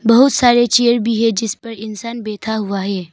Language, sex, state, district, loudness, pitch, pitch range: Hindi, female, Arunachal Pradesh, Papum Pare, -15 LUFS, 230 Hz, 215-235 Hz